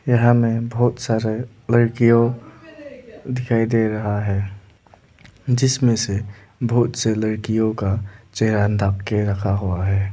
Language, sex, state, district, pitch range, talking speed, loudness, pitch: Hindi, male, Arunachal Pradesh, Lower Dibang Valley, 105-120 Hz, 125 wpm, -20 LUFS, 110 Hz